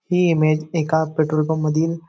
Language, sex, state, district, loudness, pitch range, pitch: Marathi, male, Maharashtra, Chandrapur, -19 LUFS, 155-165 Hz, 160 Hz